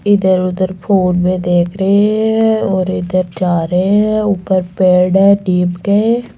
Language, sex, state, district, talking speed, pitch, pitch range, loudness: Hindi, female, Rajasthan, Jaipur, 170 wpm, 185 Hz, 180-205 Hz, -13 LUFS